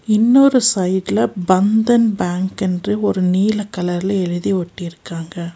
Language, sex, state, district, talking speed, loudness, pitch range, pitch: Tamil, female, Tamil Nadu, Nilgiris, 110 wpm, -16 LUFS, 180-215 Hz, 190 Hz